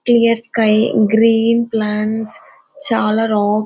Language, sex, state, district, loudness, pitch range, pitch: Telugu, female, Andhra Pradesh, Anantapur, -15 LUFS, 215-230 Hz, 225 Hz